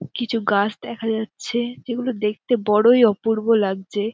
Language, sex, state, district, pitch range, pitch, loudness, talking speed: Bengali, female, West Bengal, Dakshin Dinajpur, 210-240 Hz, 225 Hz, -20 LUFS, 130 wpm